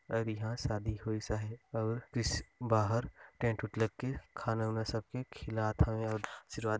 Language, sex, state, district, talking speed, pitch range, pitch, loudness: Hindi, male, Chhattisgarh, Balrampur, 175 wpm, 110-115 Hz, 110 Hz, -36 LUFS